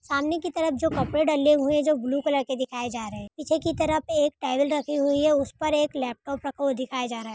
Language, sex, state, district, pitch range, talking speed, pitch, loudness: Hindi, female, Uttar Pradesh, Budaun, 265-305 Hz, 260 wpm, 285 Hz, -25 LUFS